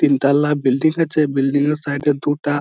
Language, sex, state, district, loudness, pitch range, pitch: Bengali, male, West Bengal, Malda, -17 LUFS, 140-150 Hz, 145 Hz